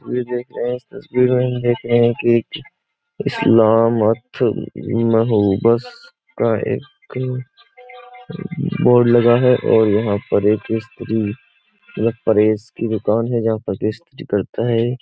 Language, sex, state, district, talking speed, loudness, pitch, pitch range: Hindi, male, Uttar Pradesh, Jyotiba Phule Nagar, 110 wpm, -17 LUFS, 120 Hz, 110-125 Hz